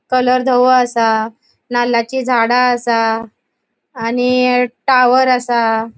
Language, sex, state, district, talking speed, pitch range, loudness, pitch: Konkani, female, Goa, North and South Goa, 90 wpm, 230-250 Hz, -14 LUFS, 245 Hz